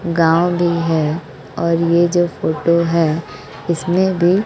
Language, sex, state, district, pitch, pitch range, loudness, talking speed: Hindi, female, Bihar, West Champaran, 170 Hz, 160-175 Hz, -16 LUFS, 135 wpm